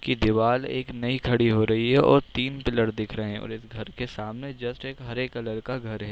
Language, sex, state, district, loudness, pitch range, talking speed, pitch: Hindi, male, Jharkhand, Jamtara, -25 LUFS, 110-125 Hz, 255 wpm, 120 Hz